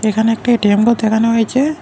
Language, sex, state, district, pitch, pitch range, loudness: Bengali, male, Tripura, West Tripura, 225 Hz, 220-240 Hz, -14 LUFS